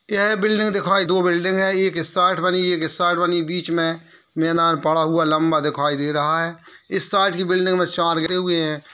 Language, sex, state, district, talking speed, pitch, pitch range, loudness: Hindi, male, Uttar Pradesh, Etah, 235 wpm, 175 Hz, 165-185 Hz, -19 LUFS